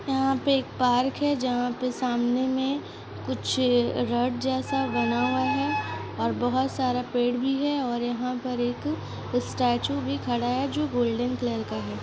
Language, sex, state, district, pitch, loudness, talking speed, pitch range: Hindi, female, Bihar, East Champaran, 245 Hz, -26 LUFS, 170 wpm, 240-265 Hz